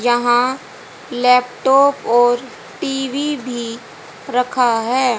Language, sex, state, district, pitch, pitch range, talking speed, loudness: Hindi, female, Haryana, Charkhi Dadri, 250 Hz, 240-265 Hz, 80 wpm, -17 LUFS